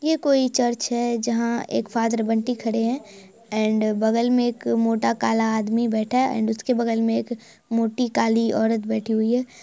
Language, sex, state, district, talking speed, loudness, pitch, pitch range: Hindi, male, Bihar, Araria, 180 wpm, -22 LUFS, 230 Hz, 220-240 Hz